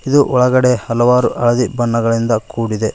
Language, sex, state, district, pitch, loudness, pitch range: Kannada, male, Karnataka, Koppal, 120 Hz, -14 LUFS, 115-125 Hz